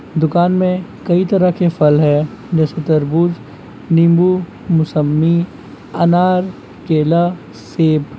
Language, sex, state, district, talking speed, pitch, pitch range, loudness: Hindi, male, Jharkhand, Sahebganj, 95 wpm, 170 Hz, 155-180 Hz, -15 LUFS